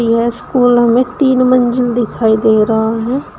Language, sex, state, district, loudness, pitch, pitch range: Hindi, female, Uttar Pradesh, Shamli, -12 LUFS, 240 Hz, 225-250 Hz